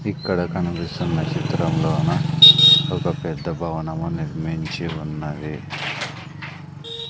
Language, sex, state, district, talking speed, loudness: Telugu, male, Andhra Pradesh, Sri Satya Sai, 70 wpm, -18 LUFS